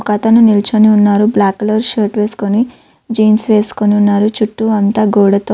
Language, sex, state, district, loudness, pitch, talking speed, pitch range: Telugu, female, Andhra Pradesh, Visakhapatnam, -12 LUFS, 215 Hz, 150 wpm, 205-220 Hz